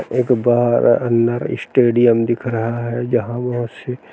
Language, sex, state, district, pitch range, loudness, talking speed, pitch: Hindi, male, Uttar Pradesh, Jalaun, 120-125 Hz, -17 LUFS, 145 wpm, 120 Hz